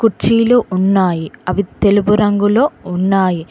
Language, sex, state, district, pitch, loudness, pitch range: Telugu, female, Telangana, Mahabubabad, 200 Hz, -14 LUFS, 185-215 Hz